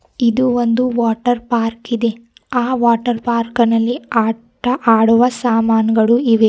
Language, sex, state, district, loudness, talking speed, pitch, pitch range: Kannada, female, Karnataka, Bidar, -16 LUFS, 110 wpm, 235 Hz, 225-245 Hz